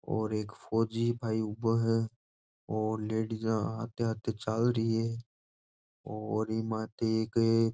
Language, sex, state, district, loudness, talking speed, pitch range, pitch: Marwari, male, Rajasthan, Nagaur, -32 LUFS, 125 wpm, 110-115 Hz, 110 Hz